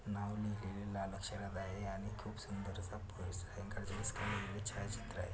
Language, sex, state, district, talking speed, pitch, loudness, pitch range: Marathi, male, Maharashtra, Pune, 125 wpm, 100 Hz, -44 LUFS, 95-105 Hz